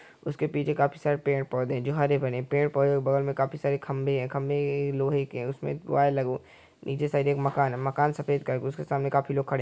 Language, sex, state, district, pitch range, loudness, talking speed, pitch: Hindi, male, Uttar Pradesh, Hamirpur, 135-145 Hz, -27 LUFS, 260 wpm, 140 Hz